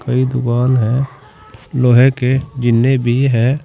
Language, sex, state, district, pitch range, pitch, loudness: Hindi, male, Uttar Pradesh, Saharanpur, 120-130 Hz, 125 Hz, -14 LUFS